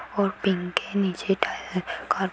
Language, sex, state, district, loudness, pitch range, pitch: Hindi, female, Uttar Pradesh, Hamirpur, -26 LUFS, 185-200 Hz, 195 Hz